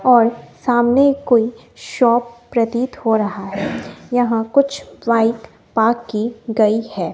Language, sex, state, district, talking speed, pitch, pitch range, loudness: Hindi, female, Bihar, West Champaran, 125 wpm, 235 Hz, 225-245 Hz, -17 LUFS